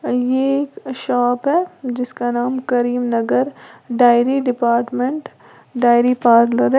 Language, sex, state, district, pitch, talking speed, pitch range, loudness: Hindi, female, Uttar Pradesh, Lalitpur, 250 Hz, 105 wpm, 240-265 Hz, -17 LUFS